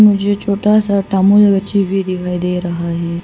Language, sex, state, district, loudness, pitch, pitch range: Hindi, female, Arunachal Pradesh, Papum Pare, -14 LUFS, 195 Hz, 180-205 Hz